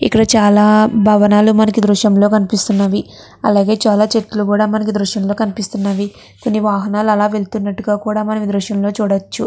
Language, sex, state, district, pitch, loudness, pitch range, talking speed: Telugu, female, Andhra Pradesh, Chittoor, 210 Hz, -14 LUFS, 205-215 Hz, 145 wpm